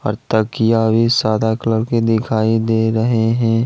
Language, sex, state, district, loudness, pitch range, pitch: Hindi, male, Jharkhand, Ranchi, -16 LUFS, 110-115 Hz, 115 Hz